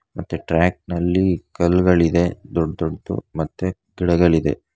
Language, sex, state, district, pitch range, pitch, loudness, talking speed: Kannada, male, Karnataka, Bangalore, 85-90 Hz, 85 Hz, -20 LUFS, 115 wpm